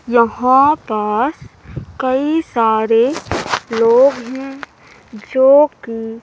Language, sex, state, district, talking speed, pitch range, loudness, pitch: Hindi, female, Madhya Pradesh, Umaria, 75 wpm, 225-275 Hz, -15 LUFS, 250 Hz